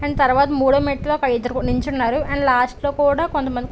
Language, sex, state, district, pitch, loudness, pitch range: Telugu, female, Andhra Pradesh, Visakhapatnam, 280 Hz, -19 LUFS, 255-290 Hz